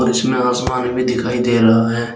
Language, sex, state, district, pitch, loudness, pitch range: Hindi, male, Uttar Pradesh, Shamli, 125 Hz, -16 LUFS, 120-125 Hz